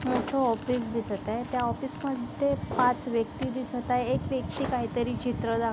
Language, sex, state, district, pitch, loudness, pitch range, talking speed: Marathi, female, Maharashtra, Aurangabad, 245 Hz, -29 LUFS, 230-255 Hz, 180 wpm